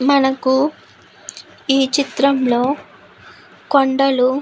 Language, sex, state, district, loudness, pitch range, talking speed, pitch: Telugu, female, Andhra Pradesh, Guntur, -16 LUFS, 260-275 Hz, 70 wpm, 270 Hz